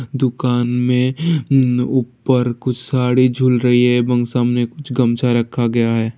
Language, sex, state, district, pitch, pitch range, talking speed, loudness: Hindi, male, Bihar, Jahanabad, 125 Hz, 120-130 Hz, 155 wpm, -16 LUFS